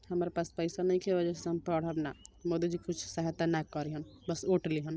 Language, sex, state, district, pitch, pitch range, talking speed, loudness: Bhojpuri, female, Uttar Pradesh, Ghazipur, 170 Hz, 160-175 Hz, 230 wpm, -34 LUFS